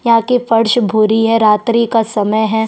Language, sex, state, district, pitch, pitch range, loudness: Hindi, female, Chhattisgarh, Sukma, 225 Hz, 215-235 Hz, -13 LUFS